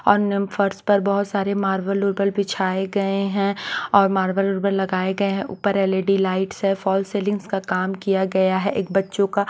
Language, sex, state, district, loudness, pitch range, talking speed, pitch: Hindi, female, Maharashtra, Washim, -21 LUFS, 190-200 Hz, 185 wpm, 195 Hz